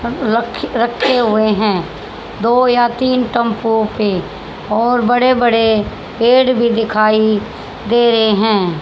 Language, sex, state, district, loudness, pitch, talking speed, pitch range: Hindi, female, Haryana, Charkhi Dadri, -14 LUFS, 230 Hz, 120 wpm, 215-240 Hz